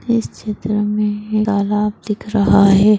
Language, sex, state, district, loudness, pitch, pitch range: Hindi, female, Chhattisgarh, Bastar, -17 LUFS, 210 Hz, 205-215 Hz